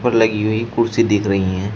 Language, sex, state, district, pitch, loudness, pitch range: Hindi, male, Uttar Pradesh, Shamli, 110 Hz, -17 LUFS, 100-115 Hz